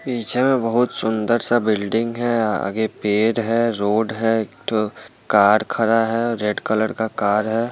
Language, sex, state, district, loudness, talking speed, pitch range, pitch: Hindi, male, Bihar, Muzaffarpur, -19 LUFS, 170 wpm, 105-115 Hz, 110 Hz